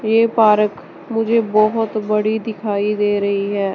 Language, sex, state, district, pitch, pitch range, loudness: Hindi, male, Chandigarh, Chandigarh, 215 Hz, 205-225 Hz, -17 LUFS